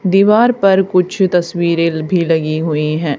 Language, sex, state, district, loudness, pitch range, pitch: Hindi, female, Haryana, Charkhi Dadri, -14 LUFS, 160-190 Hz, 175 Hz